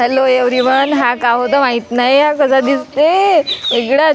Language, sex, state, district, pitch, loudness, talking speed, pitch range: Marathi, female, Maharashtra, Gondia, 265 Hz, -12 LUFS, 175 wpm, 245-290 Hz